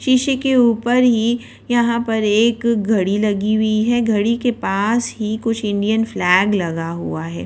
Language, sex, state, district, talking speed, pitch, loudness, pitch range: Hindi, female, Delhi, New Delhi, 170 wpm, 220 Hz, -17 LUFS, 205-235 Hz